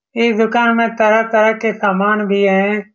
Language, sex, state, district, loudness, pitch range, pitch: Hindi, male, Bihar, Saran, -14 LUFS, 205-225 Hz, 215 Hz